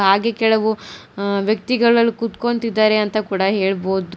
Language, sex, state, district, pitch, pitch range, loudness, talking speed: Kannada, female, Karnataka, Koppal, 215 Hz, 195-230 Hz, -18 LUFS, 130 wpm